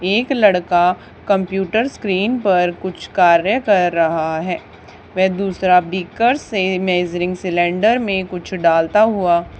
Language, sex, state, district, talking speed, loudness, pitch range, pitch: Hindi, female, Haryana, Charkhi Dadri, 125 wpm, -17 LUFS, 175-200 Hz, 185 Hz